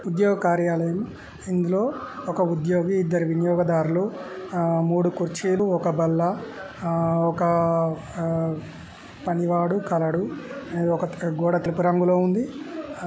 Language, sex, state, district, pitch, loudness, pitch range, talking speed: Telugu, male, Telangana, Karimnagar, 175 Hz, -24 LUFS, 170-185 Hz, 105 wpm